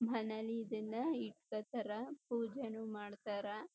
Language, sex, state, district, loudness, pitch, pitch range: Kannada, female, Karnataka, Chamarajanagar, -43 LUFS, 220 Hz, 215-235 Hz